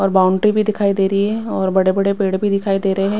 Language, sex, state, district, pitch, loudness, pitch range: Hindi, female, Bihar, West Champaran, 195 Hz, -17 LUFS, 190-205 Hz